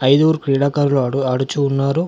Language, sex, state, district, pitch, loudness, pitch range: Telugu, male, Telangana, Hyderabad, 140 Hz, -17 LUFS, 135-145 Hz